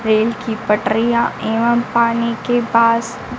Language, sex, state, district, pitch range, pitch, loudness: Hindi, female, Bihar, Kaimur, 220-235 Hz, 230 Hz, -16 LUFS